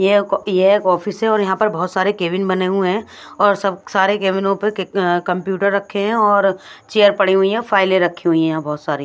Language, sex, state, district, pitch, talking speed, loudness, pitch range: Hindi, female, Punjab, Pathankot, 195 Hz, 225 wpm, -17 LUFS, 185-205 Hz